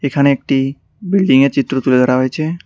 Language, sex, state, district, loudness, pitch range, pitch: Bengali, male, West Bengal, Cooch Behar, -14 LUFS, 130-155 Hz, 140 Hz